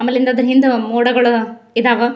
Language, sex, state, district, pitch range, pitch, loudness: Kannada, female, Karnataka, Gulbarga, 235-250 Hz, 245 Hz, -14 LUFS